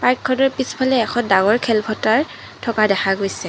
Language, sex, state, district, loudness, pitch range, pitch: Assamese, female, Assam, Kamrup Metropolitan, -18 LUFS, 205-255 Hz, 225 Hz